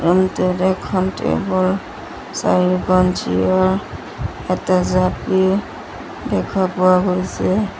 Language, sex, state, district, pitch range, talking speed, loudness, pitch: Assamese, female, Assam, Sonitpur, 185-190 Hz, 70 wpm, -18 LUFS, 185 Hz